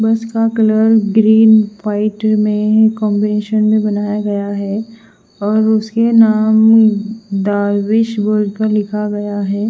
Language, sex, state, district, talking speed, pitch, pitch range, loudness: Hindi, female, Punjab, Fazilka, 115 wpm, 215 Hz, 205-220 Hz, -13 LUFS